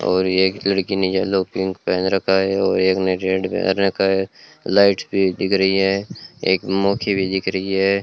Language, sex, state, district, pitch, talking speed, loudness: Hindi, male, Rajasthan, Bikaner, 95 Hz, 200 wpm, -19 LUFS